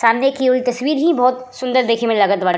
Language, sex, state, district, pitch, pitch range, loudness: Bhojpuri, female, Uttar Pradesh, Ghazipur, 250 Hz, 230-255 Hz, -16 LUFS